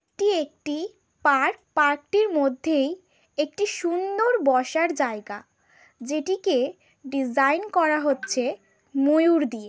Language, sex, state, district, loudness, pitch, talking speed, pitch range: Bengali, female, West Bengal, Malda, -24 LUFS, 300 Hz, 100 wpm, 275-365 Hz